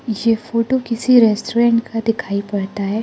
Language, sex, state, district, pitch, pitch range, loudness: Hindi, female, Arunachal Pradesh, Lower Dibang Valley, 225 Hz, 210-235 Hz, -17 LUFS